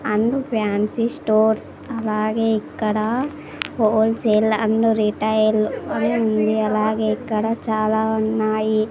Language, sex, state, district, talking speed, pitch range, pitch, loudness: Telugu, female, Andhra Pradesh, Sri Satya Sai, 95 wpm, 215-225 Hz, 220 Hz, -20 LUFS